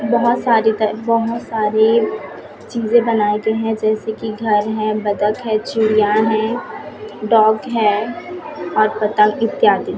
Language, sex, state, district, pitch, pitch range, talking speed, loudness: Hindi, female, Chhattisgarh, Raipur, 220 Hz, 215-230 Hz, 130 wpm, -17 LUFS